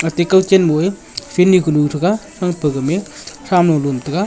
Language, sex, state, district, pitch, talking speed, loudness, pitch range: Wancho, male, Arunachal Pradesh, Longding, 175 Hz, 155 wpm, -15 LUFS, 150-185 Hz